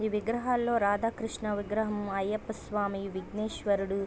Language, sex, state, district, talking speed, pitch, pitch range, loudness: Telugu, female, Andhra Pradesh, Visakhapatnam, 120 wpm, 210 Hz, 200-220 Hz, -31 LUFS